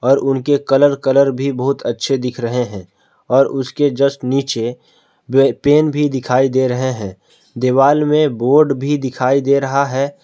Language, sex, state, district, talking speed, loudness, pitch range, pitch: Hindi, male, Jharkhand, Palamu, 170 wpm, -15 LUFS, 125-140 Hz, 135 Hz